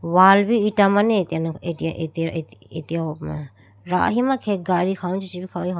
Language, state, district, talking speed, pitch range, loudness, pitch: Idu Mishmi, Arunachal Pradesh, Lower Dibang Valley, 155 wpm, 160-195 Hz, -21 LUFS, 175 Hz